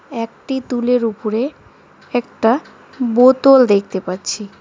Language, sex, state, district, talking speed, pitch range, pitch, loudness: Bengali, female, West Bengal, Cooch Behar, 90 wpm, 215-255 Hz, 235 Hz, -16 LUFS